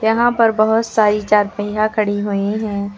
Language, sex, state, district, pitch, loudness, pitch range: Hindi, female, Uttar Pradesh, Lucknow, 215 Hz, -16 LUFS, 205-220 Hz